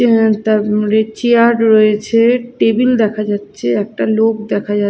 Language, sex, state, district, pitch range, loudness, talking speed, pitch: Bengali, female, Odisha, Khordha, 210-230 Hz, -13 LUFS, 110 wpm, 220 Hz